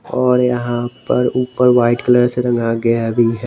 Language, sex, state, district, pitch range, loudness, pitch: Hindi, male, Jharkhand, Garhwa, 120-125 Hz, -15 LUFS, 125 Hz